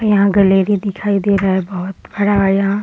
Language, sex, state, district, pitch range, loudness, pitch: Hindi, female, Bihar, Gaya, 195-205 Hz, -15 LUFS, 200 Hz